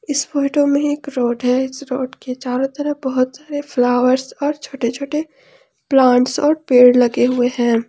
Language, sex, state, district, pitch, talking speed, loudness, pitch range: Hindi, female, Jharkhand, Ranchi, 265 Hz, 175 wpm, -17 LUFS, 250-290 Hz